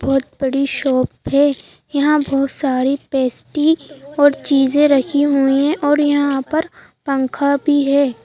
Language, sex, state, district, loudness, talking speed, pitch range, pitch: Hindi, female, Madhya Pradesh, Bhopal, -16 LUFS, 140 wpm, 270-290 Hz, 280 Hz